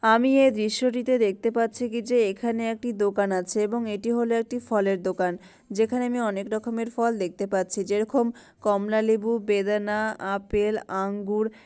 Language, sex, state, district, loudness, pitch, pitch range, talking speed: Bengali, female, West Bengal, Malda, -25 LUFS, 220 Hz, 205-235 Hz, 155 wpm